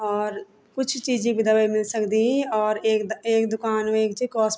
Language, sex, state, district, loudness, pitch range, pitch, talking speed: Garhwali, female, Uttarakhand, Tehri Garhwal, -23 LUFS, 215-230 Hz, 220 Hz, 210 wpm